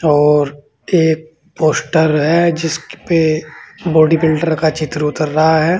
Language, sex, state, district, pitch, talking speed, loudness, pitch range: Hindi, male, Uttar Pradesh, Saharanpur, 155 Hz, 125 wpm, -14 LUFS, 155-165 Hz